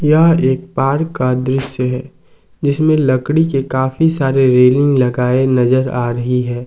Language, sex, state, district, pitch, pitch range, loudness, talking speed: Hindi, male, Jharkhand, Ranchi, 130 Hz, 125-150 Hz, -14 LUFS, 155 wpm